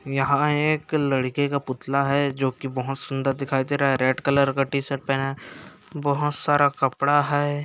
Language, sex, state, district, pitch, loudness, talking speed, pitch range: Hindi, male, Uttarakhand, Uttarkashi, 140 Hz, -23 LUFS, 190 wpm, 135-145 Hz